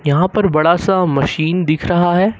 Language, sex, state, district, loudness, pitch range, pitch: Hindi, male, Uttar Pradesh, Lucknow, -15 LUFS, 155-185 Hz, 175 Hz